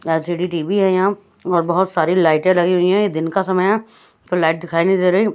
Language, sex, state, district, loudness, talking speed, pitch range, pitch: Hindi, female, Odisha, Khordha, -17 LUFS, 260 wpm, 170-190 Hz, 180 Hz